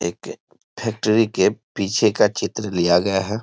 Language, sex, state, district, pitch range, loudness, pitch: Hindi, male, Bihar, East Champaran, 95-110 Hz, -20 LUFS, 100 Hz